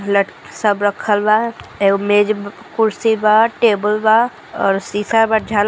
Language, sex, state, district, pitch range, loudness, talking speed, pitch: Hindi, female, Uttar Pradesh, Gorakhpur, 205-220 Hz, -16 LUFS, 170 wpm, 210 Hz